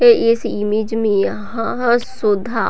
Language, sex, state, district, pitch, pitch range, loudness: Hindi, female, Chhattisgarh, Raigarh, 225 Hz, 210-235 Hz, -17 LUFS